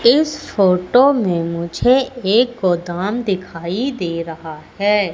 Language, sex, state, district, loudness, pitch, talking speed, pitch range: Hindi, female, Madhya Pradesh, Katni, -17 LUFS, 195 Hz, 115 wpm, 170-240 Hz